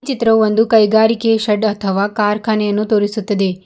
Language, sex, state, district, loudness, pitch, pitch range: Kannada, female, Karnataka, Bidar, -15 LUFS, 215 Hz, 205-225 Hz